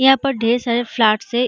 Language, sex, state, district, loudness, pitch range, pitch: Hindi, female, Uttar Pradesh, Jyotiba Phule Nagar, -17 LUFS, 230-265 Hz, 240 Hz